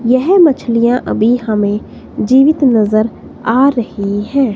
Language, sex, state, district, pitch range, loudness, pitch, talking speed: Hindi, female, Himachal Pradesh, Shimla, 215-265 Hz, -12 LUFS, 240 Hz, 120 wpm